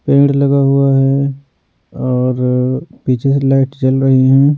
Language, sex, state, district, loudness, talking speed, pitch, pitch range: Hindi, male, Odisha, Nuapada, -13 LUFS, 145 wpm, 135 Hz, 130-140 Hz